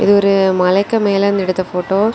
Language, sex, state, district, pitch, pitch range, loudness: Tamil, female, Tamil Nadu, Kanyakumari, 195 Hz, 185-200 Hz, -14 LUFS